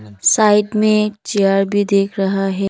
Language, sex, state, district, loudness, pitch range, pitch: Hindi, female, Arunachal Pradesh, Papum Pare, -15 LUFS, 195-210 Hz, 200 Hz